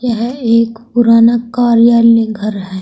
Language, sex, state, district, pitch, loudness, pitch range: Hindi, female, Uttar Pradesh, Saharanpur, 230 Hz, -11 LUFS, 225-235 Hz